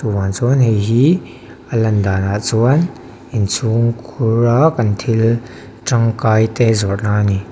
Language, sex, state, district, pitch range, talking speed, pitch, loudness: Mizo, male, Mizoram, Aizawl, 105-120 Hz, 135 wpm, 115 Hz, -15 LUFS